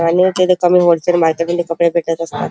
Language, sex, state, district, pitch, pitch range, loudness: Marathi, male, Maharashtra, Chandrapur, 170 Hz, 165-180 Hz, -14 LUFS